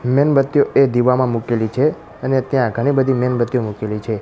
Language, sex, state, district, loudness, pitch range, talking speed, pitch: Gujarati, male, Gujarat, Gandhinagar, -17 LUFS, 115-135 Hz, 170 wpm, 125 Hz